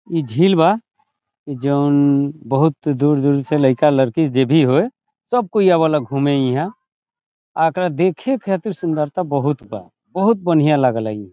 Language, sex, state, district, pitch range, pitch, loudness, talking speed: Bhojpuri, male, Bihar, Saran, 140-185 Hz, 150 Hz, -17 LUFS, 145 wpm